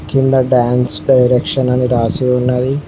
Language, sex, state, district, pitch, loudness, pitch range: Telugu, male, Telangana, Mahabubabad, 125 Hz, -13 LUFS, 125-135 Hz